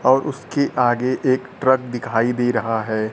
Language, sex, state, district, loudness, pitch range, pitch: Hindi, male, Bihar, Kaimur, -20 LUFS, 115-130 Hz, 125 Hz